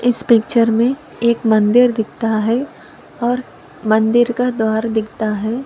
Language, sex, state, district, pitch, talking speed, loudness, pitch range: Hindi, female, Telangana, Hyderabad, 230 Hz, 140 wpm, -16 LUFS, 220-245 Hz